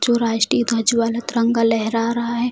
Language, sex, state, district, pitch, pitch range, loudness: Hindi, female, Bihar, Jamui, 230 Hz, 230-235 Hz, -19 LUFS